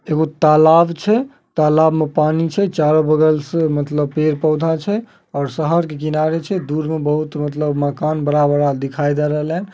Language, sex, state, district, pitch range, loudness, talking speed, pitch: Magahi, male, Bihar, Samastipur, 150-165 Hz, -17 LUFS, 185 wpm, 155 Hz